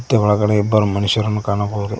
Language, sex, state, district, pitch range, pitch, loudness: Kannada, male, Karnataka, Koppal, 100-110 Hz, 105 Hz, -17 LUFS